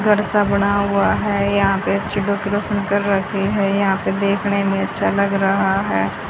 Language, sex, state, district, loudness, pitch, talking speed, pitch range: Hindi, female, Haryana, Charkhi Dadri, -18 LUFS, 200 Hz, 200 wpm, 195-200 Hz